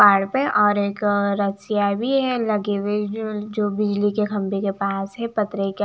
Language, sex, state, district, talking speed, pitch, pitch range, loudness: Hindi, female, Himachal Pradesh, Shimla, 185 wpm, 205 Hz, 200-210 Hz, -22 LUFS